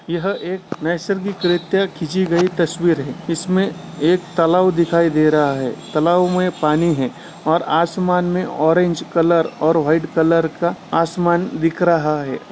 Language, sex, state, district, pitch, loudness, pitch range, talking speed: Hindi, male, Bihar, Gaya, 170 Hz, -18 LUFS, 160-180 Hz, 145 wpm